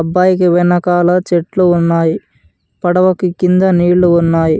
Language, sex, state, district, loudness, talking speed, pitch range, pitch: Telugu, male, Andhra Pradesh, Anantapur, -12 LUFS, 105 wpm, 165-180 Hz, 175 Hz